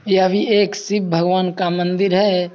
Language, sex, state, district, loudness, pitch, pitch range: Hindi, male, Bihar, Samastipur, -17 LUFS, 185 Hz, 180-200 Hz